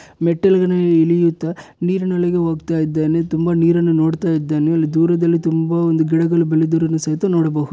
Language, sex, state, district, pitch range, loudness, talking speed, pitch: Kannada, male, Karnataka, Bellary, 160-170 Hz, -17 LUFS, 125 wpm, 165 Hz